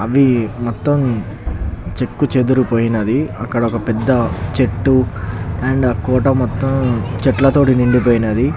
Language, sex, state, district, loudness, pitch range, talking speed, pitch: Telugu, male, Telangana, Nalgonda, -16 LUFS, 110-130 Hz, 90 wpm, 120 Hz